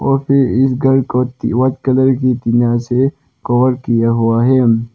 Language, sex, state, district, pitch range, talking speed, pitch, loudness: Hindi, male, Arunachal Pradesh, Papum Pare, 120-130 Hz, 170 wpm, 125 Hz, -14 LUFS